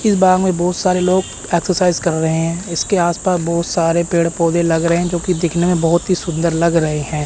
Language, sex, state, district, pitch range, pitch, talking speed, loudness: Hindi, male, Chandigarh, Chandigarh, 165-180 Hz, 170 Hz, 240 wpm, -16 LUFS